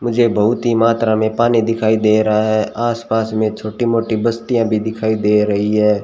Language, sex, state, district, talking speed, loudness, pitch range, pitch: Hindi, male, Rajasthan, Bikaner, 210 wpm, -16 LUFS, 110-115 Hz, 110 Hz